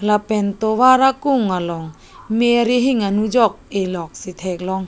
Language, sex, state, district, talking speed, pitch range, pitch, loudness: Karbi, female, Assam, Karbi Anglong, 145 wpm, 185-240 Hz, 210 Hz, -17 LUFS